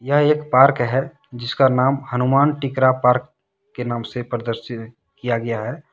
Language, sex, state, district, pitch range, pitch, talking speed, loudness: Hindi, male, Jharkhand, Deoghar, 120-135 Hz, 125 Hz, 160 wpm, -19 LUFS